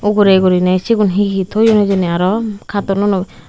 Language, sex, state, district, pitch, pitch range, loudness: Chakma, female, Tripura, Unakoti, 200 Hz, 185-210 Hz, -14 LUFS